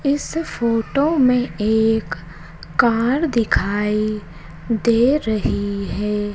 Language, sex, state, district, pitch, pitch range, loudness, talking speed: Hindi, female, Madhya Pradesh, Dhar, 225 Hz, 205-245 Hz, -19 LUFS, 85 wpm